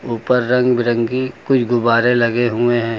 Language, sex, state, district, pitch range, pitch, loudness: Hindi, male, Uttar Pradesh, Lucknow, 115-125 Hz, 120 Hz, -16 LUFS